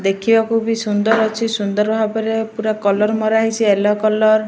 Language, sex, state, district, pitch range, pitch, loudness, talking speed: Odia, female, Odisha, Malkangiri, 210-225 Hz, 220 Hz, -17 LUFS, 175 wpm